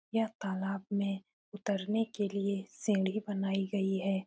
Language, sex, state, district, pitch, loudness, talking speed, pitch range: Hindi, female, Bihar, Saran, 200 Hz, -34 LUFS, 155 wpm, 195-205 Hz